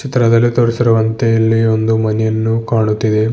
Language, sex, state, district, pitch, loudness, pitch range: Kannada, male, Karnataka, Bidar, 115 Hz, -14 LUFS, 110-115 Hz